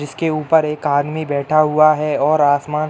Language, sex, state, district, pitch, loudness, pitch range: Hindi, male, Uttar Pradesh, Hamirpur, 150 Hz, -16 LUFS, 145-155 Hz